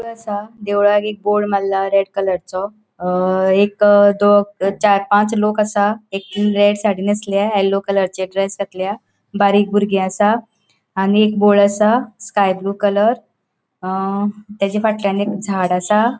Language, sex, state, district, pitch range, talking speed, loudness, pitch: Konkani, female, Goa, North and South Goa, 195-210 Hz, 135 wpm, -16 LUFS, 205 Hz